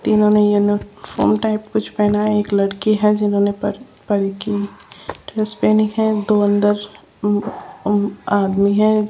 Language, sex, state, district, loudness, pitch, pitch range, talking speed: Hindi, female, Rajasthan, Jaipur, -17 LUFS, 210 Hz, 205-215 Hz, 150 wpm